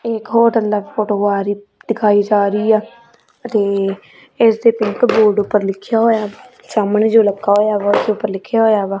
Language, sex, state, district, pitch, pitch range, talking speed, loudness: Punjabi, female, Punjab, Kapurthala, 210 Hz, 205-225 Hz, 180 wpm, -15 LUFS